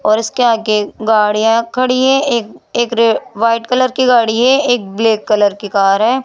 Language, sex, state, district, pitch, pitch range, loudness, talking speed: Hindi, female, Rajasthan, Jaipur, 230 Hz, 215-250 Hz, -13 LUFS, 190 wpm